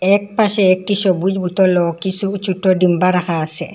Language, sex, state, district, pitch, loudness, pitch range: Bengali, female, Assam, Hailakandi, 185 Hz, -15 LUFS, 180-195 Hz